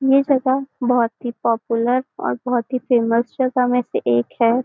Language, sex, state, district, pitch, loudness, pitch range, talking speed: Hindi, female, Maharashtra, Nagpur, 245 Hz, -19 LUFS, 230-260 Hz, 180 wpm